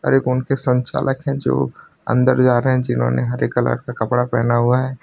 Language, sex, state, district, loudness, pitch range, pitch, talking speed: Hindi, male, Gujarat, Valsad, -18 LUFS, 115-130 Hz, 125 Hz, 205 wpm